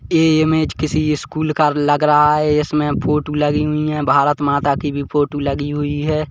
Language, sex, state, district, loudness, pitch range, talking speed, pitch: Hindi, male, Chhattisgarh, Kabirdham, -17 LUFS, 145-155 Hz, 210 wpm, 150 Hz